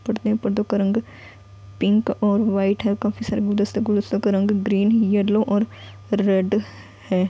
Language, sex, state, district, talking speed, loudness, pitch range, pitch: Hindi, female, Bihar, Gopalganj, 165 wpm, -21 LUFS, 195-210 Hz, 205 Hz